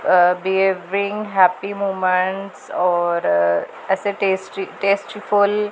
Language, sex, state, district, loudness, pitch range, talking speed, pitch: Hindi, female, Punjab, Pathankot, -19 LUFS, 180-200 Hz, 105 wpm, 195 Hz